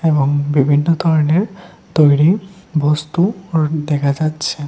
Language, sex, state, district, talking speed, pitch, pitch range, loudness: Bengali, male, Tripura, West Tripura, 90 wpm, 155 Hz, 145-170 Hz, -16 LUFS